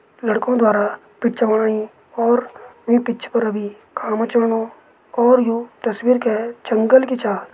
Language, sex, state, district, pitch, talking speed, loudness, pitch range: Garhwali, male, Uttarakhand, Uttarkashi, 230 Hz, 145 wpm, -18 LUFS, 220-240 Hz